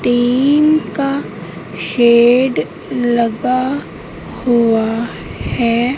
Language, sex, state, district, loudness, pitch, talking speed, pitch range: Hindi, female, Madhya Pradesh, Katni, -15 LUFS, 245 Hz, 60 wpm, 235-270 Hz